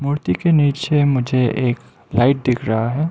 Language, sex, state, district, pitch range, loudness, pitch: Hindi, male, Arunachal Pradesh, Lower Dibang Valley, 120-145 Hz, -18 LUFS, 130 Hz